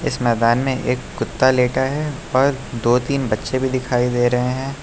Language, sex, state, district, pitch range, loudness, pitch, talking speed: Hindi, male, Uttar Pradesh, Lucknow, 120-130 Hz, -19 LUFS, 130 Hz, 200 wpm